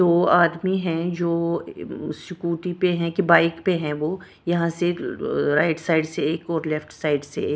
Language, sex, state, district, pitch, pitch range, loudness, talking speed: Hindi, female, Punjab, Kapurthala, 170 Hz, 165-175 Hz, -23 LUFS, 180 wpm